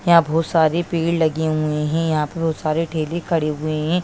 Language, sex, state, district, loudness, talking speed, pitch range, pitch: Hindi, female, Bihar, Saran, -20 LUFS, 205 wpm, 155-165 Hz, 160 Hz